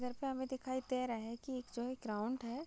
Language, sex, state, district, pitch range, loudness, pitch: Hindi, female, Bihar, Gopalganj, 235-260 Hz, -41 LUFS, 255 Hz